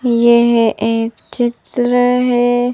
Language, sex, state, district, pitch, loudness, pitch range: Hindi, female, Madhya Pradesh, Bhopal, 240 Hz, -14 LUFS, 235-245 Hz